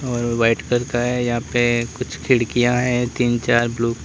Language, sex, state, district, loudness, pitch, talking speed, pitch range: Hindi, male, Uttar Pradesh, Lalitpur, -19 LUFS, 120 Hz, 205 wpm, 120-125 Hz